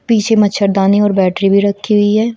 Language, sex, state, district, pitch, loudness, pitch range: Hindi, female, Uttar Pradesh, Shamli, 205 Hz, -12 LUFS, 195-215 Hz